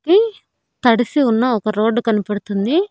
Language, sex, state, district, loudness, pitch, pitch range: Telugu, female, Andhra Pradesh, Annamaya, -17 LUFS, 235 Hz, 215-295 Hz